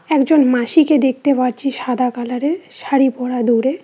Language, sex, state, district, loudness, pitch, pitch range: Bengali, female, West Bengal, Cooch Behar, -16 LUFS, 265 Hz, 250-285 Hz